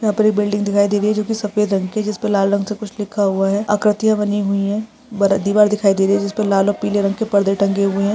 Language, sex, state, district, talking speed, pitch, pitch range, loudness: Hindi, female, Rajasthan, Nagaur, 310 wpm, 205 Hz, 200-210 Hz, -17 LUFS